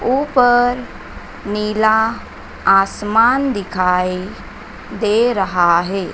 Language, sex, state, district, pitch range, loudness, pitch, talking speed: Hindi, female, Madhya Pradesh, Dhar, 195-240 Hz, -16 LUFS, 210 Hz, 70 wpm